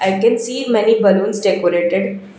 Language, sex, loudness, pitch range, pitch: English, female, -15 LUFS, 190-225 Hz, 195 Hz